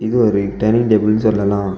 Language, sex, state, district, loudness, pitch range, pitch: Tamil, male, Tamil Nadu, Kanyakumari, -15 LUFS, 100-110 Hz, 105 Hz